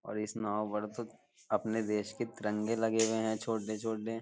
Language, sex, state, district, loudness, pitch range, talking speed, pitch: Hindi, male, Uttar Pradesh, Jyotiba Phule Nagar, -35 LUFS, 105-115 Hz, 185 wpm, 110 Hz